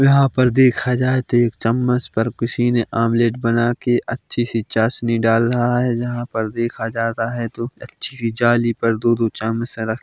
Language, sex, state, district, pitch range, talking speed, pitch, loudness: Hindi, male, Chhattisgarh, Bilaspur, 115-120 Hz, 190 wpm, 120 Hz, -19 LUFS